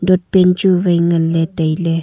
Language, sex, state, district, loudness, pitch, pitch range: Wancho, female, Arunachal Pradesh, Longding, -14 LUFS, 170 Hz, 165-185 Hz